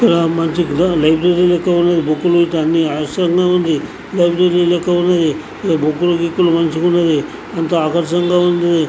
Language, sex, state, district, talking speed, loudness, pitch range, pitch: Telugu, male, Andhra Pradesh, Anantapur, 100 wpm, -14 LUFS, 165-175 Hz, 170 Hz